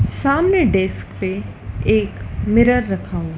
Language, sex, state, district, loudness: Hindi, female, Madhya Pradesh, Dhar, -18 LUFS